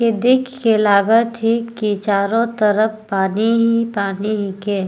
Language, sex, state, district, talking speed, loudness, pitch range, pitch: Sadri, female, Chhattisgarh, Jashpur, 150 wpm, -17 LUFS, 200-230 Hz, 215 Hz